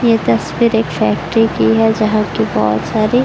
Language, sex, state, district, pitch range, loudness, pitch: Hindi, female, Uttar Pradesh, Varanasi, 215-230 Hz, -14 LUFS, 225 Hz